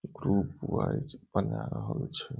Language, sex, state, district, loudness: Maithili, male, Bihar, Saharsa, -33 LUFS